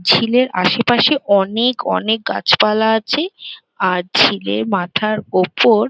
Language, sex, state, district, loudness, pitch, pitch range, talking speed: Bengali, female, West Bengal, Jhargram, -15 LUFS, 220 Hz, 185-240 Hz, 110 wpm